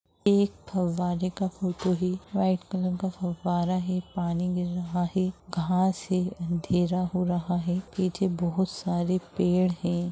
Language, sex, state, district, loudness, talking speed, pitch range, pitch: Hindi, female, Chhattisgarh, Rajnandgaon, -28 LUFS, 155 wpm, 175-185 Hz, 180 Hz